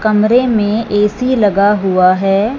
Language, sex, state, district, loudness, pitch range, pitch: Hindi, male, Punjab, Fazilka, -12 LUFS, 200-225 Hz, 210 Hz